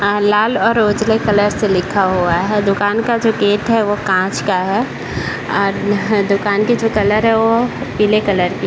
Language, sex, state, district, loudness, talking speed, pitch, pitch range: Hindi, male, Bihar, Jahanabad, -15 LUFS, 195 wpm, 205 Hz, 200-220 Hz